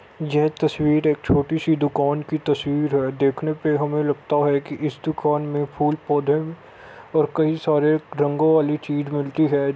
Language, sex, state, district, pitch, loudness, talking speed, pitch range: Hindi, male, Uttar Pradesh, Muzaffarnagar, 150 Hz, -21 LUFS, 165 wpm, 145-155 Hz